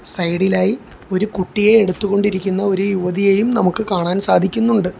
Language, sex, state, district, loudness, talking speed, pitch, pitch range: Malayalam, male, Kerala, Kollam, -17 LUFS, 120 wpm, 195 Hz, 185-205 Hz